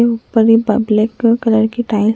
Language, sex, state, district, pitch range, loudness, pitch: Hindi, female, Uttarakhand, Tehri Garhwal, 220-230 Hz, -14 LUFS, 225 Hz